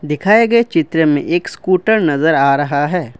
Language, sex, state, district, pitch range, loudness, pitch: Hindi, male, Assam, Kamrup Metropolitan, 145-185 Hz, -14 LUFS, 165 Hz